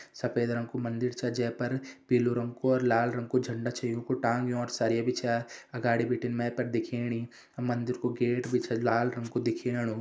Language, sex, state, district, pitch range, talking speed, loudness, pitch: Hindi, male, Uttarakhand, Tehri Garhwal, 120-125 Hz, 205 wpm, -30 LUFS, 120 Hz